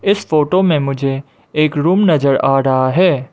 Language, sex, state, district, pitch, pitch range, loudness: Hindi, male, Arunachal Pradesh, Lower Dibang Valley, 145 Hz, 135-180 Hz, -14 LUFS